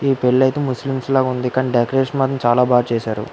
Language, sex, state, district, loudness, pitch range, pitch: Telugu, female, Andhra Pradesh, Guntur, -17 LUFS, 125-135 Hz, 130 Hz